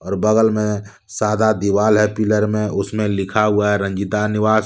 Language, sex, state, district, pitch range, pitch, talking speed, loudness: Hindi, male, Jharkhand, Deoghar, 100-110 Hz, 105 Hz, 180 wpm, -18 LUFS